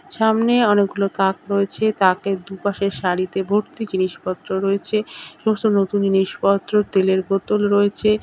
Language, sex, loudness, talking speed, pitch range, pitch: Bengali, female, -19 LUFS, 125 wpm, 190-210 Hz, 200 Hz